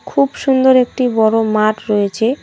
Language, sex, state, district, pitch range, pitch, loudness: Bengali, female, West Bengal, Cooch Behar, 210-250 Hz, 220 Hz, -14 LUFS